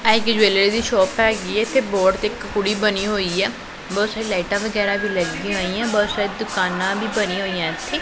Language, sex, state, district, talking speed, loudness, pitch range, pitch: Punjabi, female, Punjab, Pathankot, 215 wpm, -20 LUFS, 195-220 Hz, 205 Hz